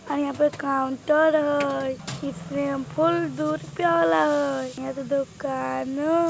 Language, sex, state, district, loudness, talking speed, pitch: Bajjika, female, Bihar, Vaishali, -24 LUFS, 145 wpm, 265 Hz